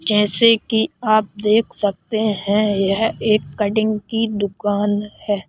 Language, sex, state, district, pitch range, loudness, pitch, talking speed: Hindi, male, Madhya Pradesh, Bhopal, 205-220 Hz, -18 LUFS, 210 Hz, 130 wpm